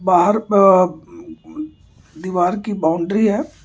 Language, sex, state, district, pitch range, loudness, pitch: Hindi, male, Delhi, New Delhi, 180-220 Hz, -16 LUFS, 200 Hz